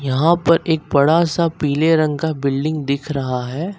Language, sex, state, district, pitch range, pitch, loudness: Hindi, male, Uttar Pradesh, Lucknow, 140-165 Hz, 155 Hz, -18 LUFS